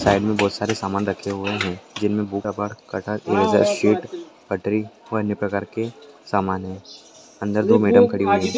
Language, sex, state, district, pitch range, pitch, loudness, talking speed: Hindi, male, Chhattisgarh, Sukma, 100-105 Hz, 105 Hz, -21 LUFS, 145 wpm